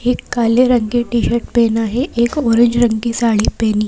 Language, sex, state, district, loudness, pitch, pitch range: Hindi, female, Madhya Pradesh, Bhopal, -15 LUFS, 235 Hz, 230-240 Hz